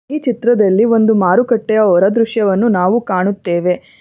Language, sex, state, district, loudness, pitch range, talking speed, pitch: Kannada, female, Karnataka, Bangalore, -13 LUFS, 190-235 Hz, 120 wpm, 220 Hz